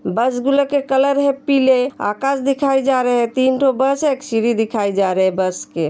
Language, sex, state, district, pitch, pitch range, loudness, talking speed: Hindi, female, Uttar Pradesh, Hamirpur, 260 Hz, 225-275 Hz, -17 LUFS, 235 wpm